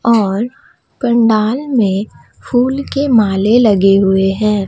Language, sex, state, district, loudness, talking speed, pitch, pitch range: Hindi, female, Bihar, Katihar, -13 LUFS, 115 wpm, 220 Hz, 195-240 Hz